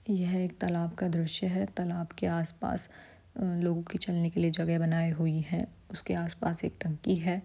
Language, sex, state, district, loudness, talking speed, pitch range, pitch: Hindi, female, Bihar, Saran, -32 LUFS, 185 wpm, 165-185 Hz, 175 Hz